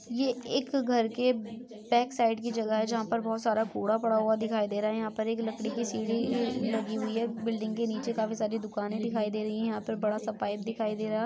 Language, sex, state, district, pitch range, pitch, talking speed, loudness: Hindi, female, Jharkhand, Sahebganj, 220-230 Hz, 225 Hz, 250 wpm, -30 LUFS